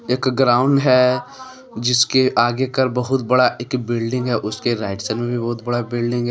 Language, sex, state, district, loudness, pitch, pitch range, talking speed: Hindi, male, Jharkhand, Deoghar, -18 LUFS, 125 Hz, 120-130 Hz, 190 wpm